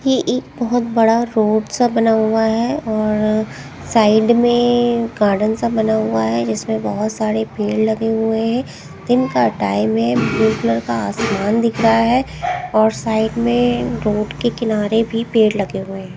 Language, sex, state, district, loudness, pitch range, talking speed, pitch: Hindi, female, Haryana, Jhajjar, -17 LUFS, 210-235 Hz, 155 wpm, 220 Hz